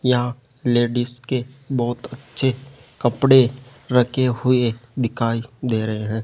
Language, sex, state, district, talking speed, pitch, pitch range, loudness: Hindi, male, Rajasthan, Jaipur, 115 wpm, 125 Hz, 120-130 Hz, -20 LUFS